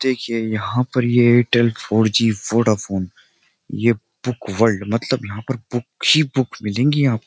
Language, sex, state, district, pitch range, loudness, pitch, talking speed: Hindi, male, Uttar Pradesh, Jyotiba Phule Nagar, 110-125 Hz, -19 LUFS, 115 Hz, 165 wpm